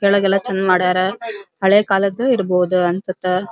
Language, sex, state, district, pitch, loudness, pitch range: Kannada, female, Karnataka, Belgaum, 195 Hz, -17 LUFS, 185-200 Hz